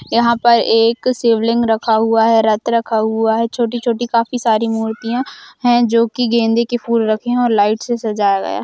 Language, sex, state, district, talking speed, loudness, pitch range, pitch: Hindi, female, Bihar, Gopalganj, 185 wpm, -15 LUFS, 225-235 Hz, 230 Hz